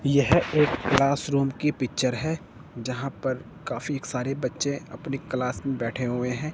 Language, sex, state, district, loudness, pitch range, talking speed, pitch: Hindi, male, Chandigarh, Chandigarh, -26 LUFS, 125-140 Hz, 165 wpm, 135 Hz